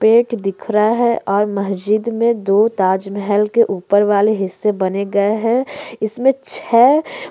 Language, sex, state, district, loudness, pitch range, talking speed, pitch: Hindi, female, Uttarakhand, Tehri Garhwal, -16 LUFS, 200-235 Hz, 165 wpm, 210 Hz